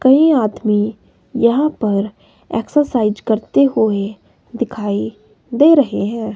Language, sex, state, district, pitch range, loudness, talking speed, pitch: Hindi, female, Himachal Pradesh, Shimla, 210-270 Hz, -16 LUFS, 105 wpm, 225 Hz